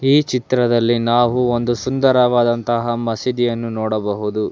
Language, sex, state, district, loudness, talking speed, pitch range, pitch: Kannada, male, Karnataka, Bangalore, -17 LUFS, 95 wpm, 115-125 Hz, 120 Hz